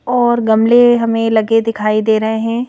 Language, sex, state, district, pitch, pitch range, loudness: Hindi, female, Madhya Pradesh, Bhopal, 225 Hz, 220-240 Hz, -13 LUFS